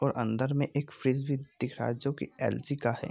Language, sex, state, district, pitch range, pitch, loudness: Hindi, male, Bihar, Sitamarhi, 120-140 Hz, 135 Hz, -32 LUFS